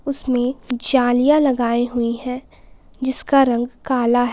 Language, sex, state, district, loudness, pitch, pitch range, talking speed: Hindi, female, Jharkhand, Palamu, -17 LUFS, 250 Hz, 245-265 Hz, 125 wpm